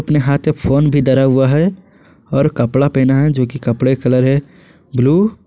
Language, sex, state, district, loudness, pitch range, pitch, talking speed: Hindi, male, Jharkhand, Garhwa, -14 LUFS, 130-150 Hz, 140 Hz, 220 wpm